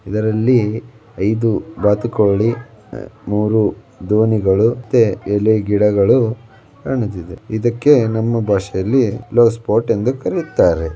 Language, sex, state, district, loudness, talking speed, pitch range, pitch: Kannada, male, Karnataka, Belgaum, -16 LUFS, 80 wpm, 105-115 Hz, 110 Hz